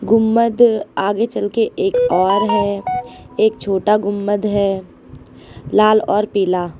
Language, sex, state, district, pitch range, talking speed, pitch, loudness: Hindi, female, Uttar Pradesh, Lucknow, 200-225 Hz, 115 wpm, 210 Hz, -16 LUFS